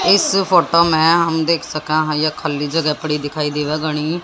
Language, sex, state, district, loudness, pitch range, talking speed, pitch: Hindi, female, Haryana, Jhajjar, -17 LUFS, 150-165 Hz, 200 wpm, 155 Hz